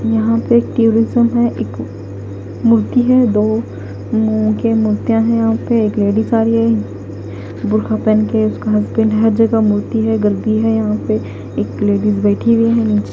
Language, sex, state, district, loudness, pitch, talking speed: Hindi, female, Punjab, Kapurthala, -14 LUFS, 215 Hz, 170 wpm